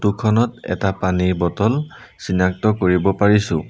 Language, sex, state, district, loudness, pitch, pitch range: Assamese, male, Assam, Sonitpur, -18 LUFS, 100 Hz, 90-110 Hz